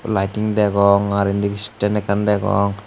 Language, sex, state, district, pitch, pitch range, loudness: Chakma, male, Tripura, Unakoti, 100 Hz, 100-105 Hz, -18 LUFS